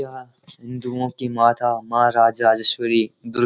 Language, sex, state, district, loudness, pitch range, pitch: Hindi, male, Uttarakhand, Uttarkashi, -19 LUFS, 115-125 Hz, 120 Hz